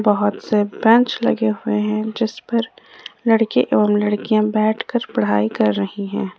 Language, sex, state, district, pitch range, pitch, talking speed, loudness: Hindi, female, Jharkhand, Ranchi, 205-225 Hz, 215 Hz, 180 wpm, -18 LUFS